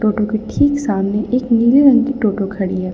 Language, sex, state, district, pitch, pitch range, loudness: Hindi, female, Jharkhand, Ranchi, 215 Hz, 200-255 Hz, -15 LUFS